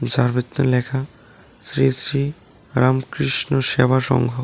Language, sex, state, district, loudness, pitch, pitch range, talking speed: Bengali, male, Tripura, West Tripura, -18 LUFS, 130 Hz, 125-135 Hz, 110 wpm